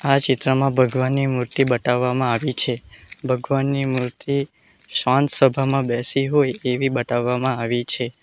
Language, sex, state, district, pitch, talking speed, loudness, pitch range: Gujarati, male, Gujarat, Valsad, 130 Hz, 125 wpm, -20 LUFS, 125-135 Hz